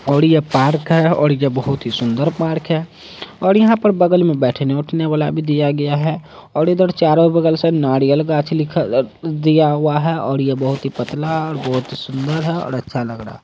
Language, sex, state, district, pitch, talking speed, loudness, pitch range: Hindi, male, Bihar, Saharsa, 155 Hz, 225 wpm, -16 LUFS, 135-165 Hz